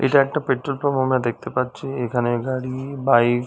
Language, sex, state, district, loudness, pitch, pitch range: Bengali, male, West Bengal, Dakshin Dinajpur, -22 LUFS, 130 Hz, 120-135 Hz